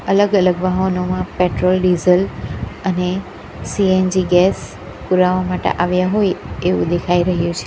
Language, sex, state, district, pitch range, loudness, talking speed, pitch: Gujarati, female, Gujarat, Valsad, 180-185 Hz, -17 LUFS, 125 wpm, 185 Hz